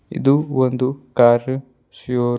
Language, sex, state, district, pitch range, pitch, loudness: Kannada, male, Karnataka, Bidar, 125-135 Hz, 130 Hz, -18 LUFS